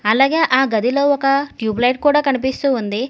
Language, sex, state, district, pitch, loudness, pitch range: Telugu, female, Telangana, Hyderabad, 265 Hz, -16 LUFS, 245-280 Hz